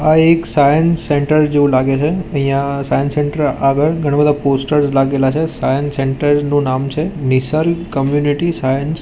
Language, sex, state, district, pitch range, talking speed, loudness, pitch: Gujarati, male, Gujarat, Gandhinagar, 135-155 Hz, 160 wpm, -15 LUFS, 145 Hz